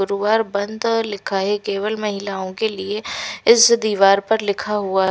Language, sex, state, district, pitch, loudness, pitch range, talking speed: Hindi, female, Bihar, Katihar, 205 Hz, -19 LUFS, 200-220 Hz, 150 wpm